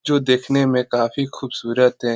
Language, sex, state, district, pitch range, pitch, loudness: Hindi, male, Bihar, Lakhisarai, 120-135 Hz, 125 Hz, -19 LUFS